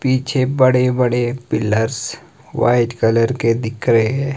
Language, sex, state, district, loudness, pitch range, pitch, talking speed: Hindi, male, Himachal Pradesh, Shimla, -17 LUFS, 115-130 Hz, 120 Hz, 125 wpm